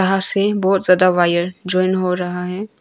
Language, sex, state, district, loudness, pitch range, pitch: Hindi, female, Arunachal Pradesh, Longding, -17 LUFS, 180-195 Hz, 185 Hz